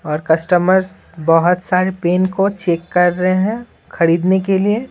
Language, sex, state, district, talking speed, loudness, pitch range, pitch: Hindi, male, Bihar, Patna, 160 wpm, -15 LUFS, 170-190 Hz, 180 Hz